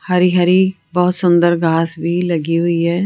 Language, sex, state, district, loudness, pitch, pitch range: Hindi, female, Rajasthan, Jaipur, -15 LUFS, 175 Hz, 170-180 Hz